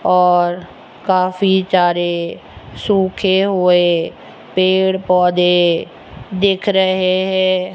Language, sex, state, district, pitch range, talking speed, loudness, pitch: Hindi, female, Rajasthan, Jaipur, 180-190 Hz, 75 wpm, -15 LUFS, 185 Hz